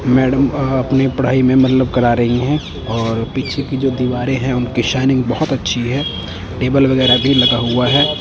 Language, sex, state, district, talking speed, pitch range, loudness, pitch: Hindi, male, Punjab, Kapurthala, 190 wpm, 120-135 Hz, -15 LUFS, 130 Hz